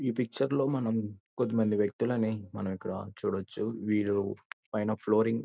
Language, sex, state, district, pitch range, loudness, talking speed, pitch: Telugu, male, Andhra Pradesh, Guntur, 105-115 Hz, -31 LUFS, 155 wpm, 110 Hz